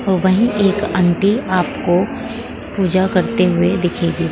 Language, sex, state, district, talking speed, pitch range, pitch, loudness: Hindi, female, Bihar, Saran, 110 wpm, 180-205 Hz, 185 Hz, -16 LUFS